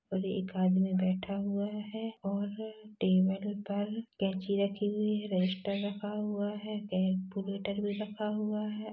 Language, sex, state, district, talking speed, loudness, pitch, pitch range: Hindi, female, Chhattisgarh, Rajnandgaon, 150 wpm, -33 LUFS, 205 Hz, 195-210 Hz